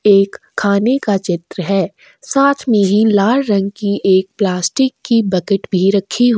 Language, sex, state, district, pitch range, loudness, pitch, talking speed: Hindi, female, Chhattisgarh, Kabirdham, 195-230 Hz, -15 LUFS, 200 Hz, 180 wpm